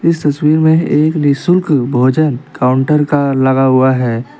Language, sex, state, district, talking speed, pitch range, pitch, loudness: Hindi, male, Jharkhand, Deoghar, 150 wpm, 130-155 Hz, 145 Hz, -12 LUFS